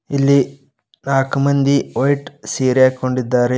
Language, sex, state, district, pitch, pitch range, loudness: Kannada, male, Karnataka, Koppal, 135 Hz, 130-140 Hz, -17 LUFS